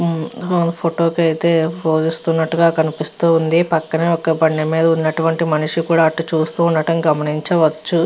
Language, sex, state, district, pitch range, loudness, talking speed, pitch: Telugu, female, Andhra Pradesh, Visakhapatnam, 160-170 Hz, -17 LUFS, 135 wpm, 165 Hz